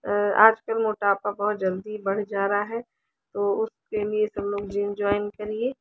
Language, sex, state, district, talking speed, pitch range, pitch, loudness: Hindi, female, Haryana, Charkhi Dadri, 205 wpm, 205-220 Hz, 210 Hz, -25 LUFS